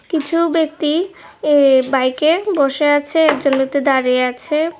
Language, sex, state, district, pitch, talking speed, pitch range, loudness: Bengali, female, Tripura, West Tripura, 295 Hz, 125 wpm, 270-320 Hz, -15 LUFS